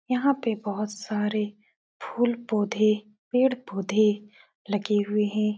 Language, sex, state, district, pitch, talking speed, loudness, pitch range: Hindi, female, Uttar Pradesh, Etah, 210 Hz, 105 wpm, -26 LUFS, 210-235 Hz